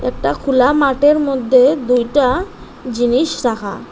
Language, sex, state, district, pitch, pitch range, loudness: Bengali, female, Assam, Hailakandi, 260 Hz, 245-285 Hz, -15 LUFS